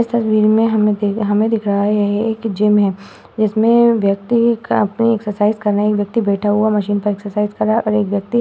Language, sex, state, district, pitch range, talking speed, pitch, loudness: Hindi, female, Uttar Pradesh, Hamirpur, 205-225 Hz, 250 wpm, 210 Hz, -16 LUFS